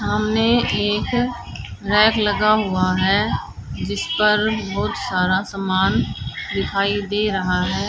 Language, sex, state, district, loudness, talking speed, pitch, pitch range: Hindi, female, Haryana, Jhajjar, -19 LUFS, 115 wpm, 200 Hz, 185-215 Hz